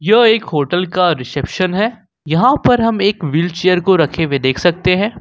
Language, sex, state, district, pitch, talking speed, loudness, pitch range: Hindi, male, Jharkhand, Ranchi, 180 Hz, 195 wpm, -14 LUFS, 160-205 Hz